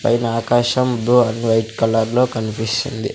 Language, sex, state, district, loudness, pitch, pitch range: Telugu, male, Andhra Pradesh, Sri Satya Sai, -17 LUFS, 115 Hz, 110-120 Hz